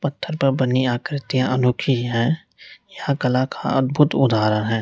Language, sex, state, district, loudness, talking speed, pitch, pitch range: Hindi, male, Uttar Pradesh, Lalitpur, -20 LUFS, 150 wpm, 130 Hz, 120-140 Hz